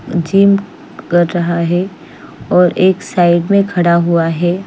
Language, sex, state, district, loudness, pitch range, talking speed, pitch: Hindi, female, Chandigarh, Chandigarh, -13 LUFS, 170-190 Hz, 140 wpm, 175 Hz